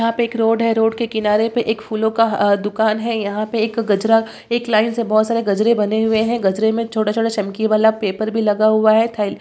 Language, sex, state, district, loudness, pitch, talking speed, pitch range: Hindi, female, Bihar, Jamui, -17 LUFS, 220 Hz, 255 wpm, 215-230 Hz